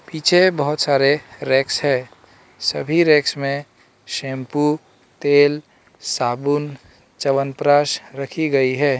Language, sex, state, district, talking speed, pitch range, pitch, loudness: Hindi, male, Arunachal Pradesh, Lower Dibang Valley, 100 wpm, 130-150 Hz, 140 Hz, -19 LUFS